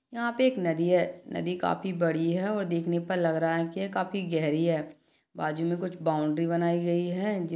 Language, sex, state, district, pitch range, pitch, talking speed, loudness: Hindi, female, Chhattisgarh, Kabirdham, 165-185 Hz, 170 Hz, 215 wpm, -28 LUFS